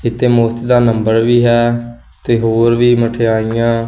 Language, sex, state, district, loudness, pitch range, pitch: Punjabi, male, Punjab, Kapurthala, -13 LUFS, 115-120 Hz, 115 Hz